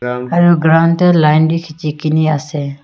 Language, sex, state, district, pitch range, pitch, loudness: Nagamese, female, Nagaland, Kohima, 150-165 Hz, 155 Hz, -13 LUFS